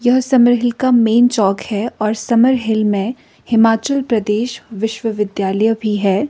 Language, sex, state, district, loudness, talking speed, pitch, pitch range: Hindi, female, Himachal Pradesh, Shimla, -15 LUFS, 150 wpm, 225 Hz, 210-245 Hz